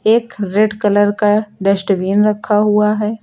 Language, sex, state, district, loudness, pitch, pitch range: Hindi, female, Uttar Pradesh, Lucknow, -14 LUFS, 210 Hz, 205-215 Hz